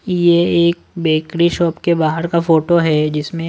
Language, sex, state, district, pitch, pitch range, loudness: Hindi, male, Delhi, New Delhi, 170 Hz, 160-170 Hz, -15 LUFS